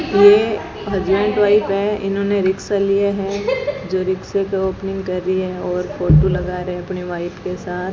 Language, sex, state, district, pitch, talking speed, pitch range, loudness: Hindi, female, Rajasthan, Bikaner, 195 Hz, 180 wpm, 180-200 Hz, -18 LUFS